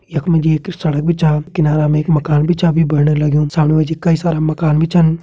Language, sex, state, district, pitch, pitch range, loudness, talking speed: Garhwali, male, Uttarakhand, Tehri Garhwal, 155 Hz, 150-165 Hz, -14 LUFS, 250 wpm